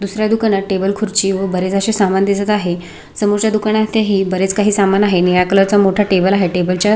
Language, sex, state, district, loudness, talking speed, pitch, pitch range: Marathi, female, Maharashtra, Sindhudurg, -14 LUFS, 215 wpm, 195 Hz, 190-210 Hz